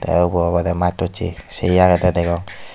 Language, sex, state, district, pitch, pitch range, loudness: Chakma, male, Tripura, Unakoti, 90 Hz, 85-90 Hz, -18 LUFS